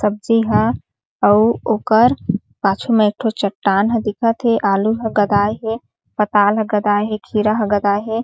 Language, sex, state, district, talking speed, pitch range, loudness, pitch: Chhattisgarhi, female, Chhattisgarh, Sarguja, 165 wpm, 205-225 Hz, -17 LUFS, 215 Hz